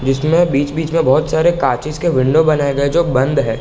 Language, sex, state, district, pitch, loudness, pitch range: Hindi, male, Bihar, Sitamarhi, 150 Hz, -15 LUFS, 135-160 Hz